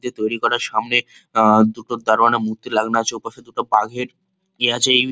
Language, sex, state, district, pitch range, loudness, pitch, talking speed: Bengali, male, West Bengal, Kolkata, 110-125 Hz, -18 LUFS, 115 Hz, 165 wpm